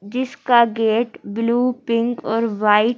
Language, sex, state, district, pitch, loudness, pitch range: Hindi, female, Madhya Pradesh, Bhopal, 230 Hz, -19 LUFS, 225-245 Hz